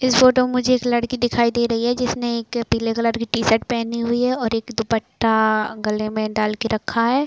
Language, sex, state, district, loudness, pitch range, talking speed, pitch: Hindi, female, Chhattisgarh, Bastar, -20 LUFS, 225-245 Hz, 230 wpm, 235 Hz